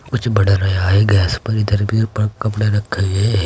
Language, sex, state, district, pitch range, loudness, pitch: Hindi, male, Uttar Pradesh, Saharanpur, 100-110 Hz, -17 LUFS, 105 Hz